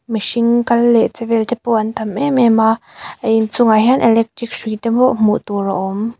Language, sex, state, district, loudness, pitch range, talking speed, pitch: Mizo, female, Mizoram, Aizawl, -15 LUFS, 220-235 Hz, 225 wpm, 230 Hz